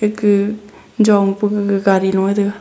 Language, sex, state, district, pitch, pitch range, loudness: Wancho, female, Arunachal Pradesh, Longding, 205 Hz, 195-210 Hz, -15 LUFS